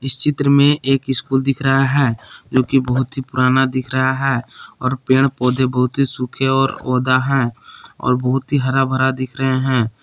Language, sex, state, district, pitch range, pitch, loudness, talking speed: Hindi, male, Jharkhand, Palamu, 130-135 Hz, 130 Hz, -17 LUFS, 195 wpm